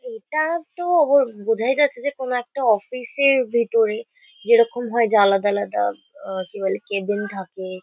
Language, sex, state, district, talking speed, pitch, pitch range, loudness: Bengali, female, West Bengal, Kolkata, 155 wpm, 240 Hz, 205-285 Hz, -20 LUFS